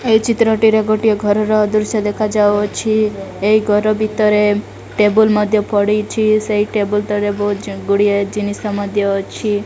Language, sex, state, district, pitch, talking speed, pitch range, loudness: Odia, female, Odisha, Malkangiri, 210 Hz, 130 wpm, 205-215 Hz, -15 LUFS